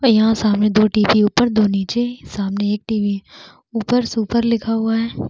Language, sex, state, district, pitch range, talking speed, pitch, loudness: Hindi, female, Chhattisgarh, Bastar, 210-230 Hz, 180 wpm, 220 Hz, -18 LUFS